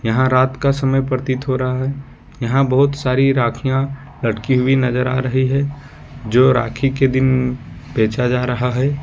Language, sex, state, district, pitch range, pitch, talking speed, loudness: Hindi, male, Jharkhand, Ranchi, 125-135 Hz, 130 Hz, 175 wpm, -17 LUFS